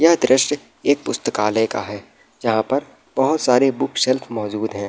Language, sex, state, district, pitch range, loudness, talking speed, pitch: Hindi, male, Bihar, Araria, 105-135 Hz, -19 LUFS, 170 wpm, 125 Hz